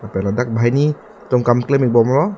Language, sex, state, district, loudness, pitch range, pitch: Karbi, male, Assam, Karbi Anglong, -16 LUFS, 115-140 Hz, 125 Hz